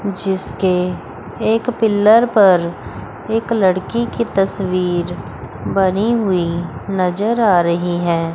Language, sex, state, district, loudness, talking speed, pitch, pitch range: Hindi, female, Chandigarh, Chandigarh, -16 LUFS, 100 wpm, 190 Hz, 175-220 Hz